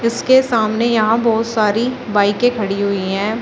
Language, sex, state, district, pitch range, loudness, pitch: Hindi, female, Uttar Pradesh, Shamli, 205-230 Hz, -16 LUFS, 225 Hz